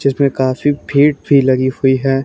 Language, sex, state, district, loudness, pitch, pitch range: Hindi, male, Haryana, Charkhi Dadri, -14 LUFS, 135 Hz, 130-140 Hz